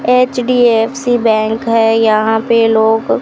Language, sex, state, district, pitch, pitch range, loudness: Hindi, female, Rajasthan, Bikaner, 225 Hz, 220-245 Hz, -12 LUFS